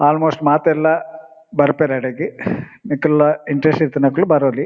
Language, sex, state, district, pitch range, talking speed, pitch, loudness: Tulu, male, Karnataka, Dakshina Kannada, 145-160 Hz, 115 wpm, 150 Hz, -17 LUFS